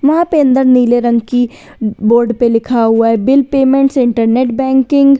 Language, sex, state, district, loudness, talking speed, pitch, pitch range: Hindi, female, Uttar Pradesh, Lalitpur, -11 LUFS, 185 wpm, 255 Hz, 235-275 Hz